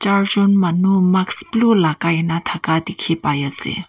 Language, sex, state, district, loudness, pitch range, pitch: Nagamese, female, Nagaland, Kohima, -16 LUFS, 165-200 Hz, 185 Hz